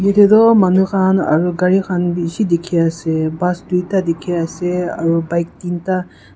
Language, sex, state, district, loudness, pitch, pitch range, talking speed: Nagamese, female, Nagaland, Kohima, -16 LUFS, 180 Hz, 165-190 Hz, 140 wpm